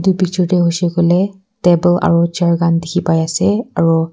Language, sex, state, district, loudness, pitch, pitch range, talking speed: Nagamese, female, Nagaland, Kohima, -14 LUFS, 175 Hz, 170-185 Hz, 190 wpm